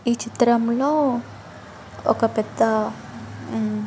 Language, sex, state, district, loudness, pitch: Telugu, female, Andhra Pradesh, Guntur, -22 LUFS, 225 Hz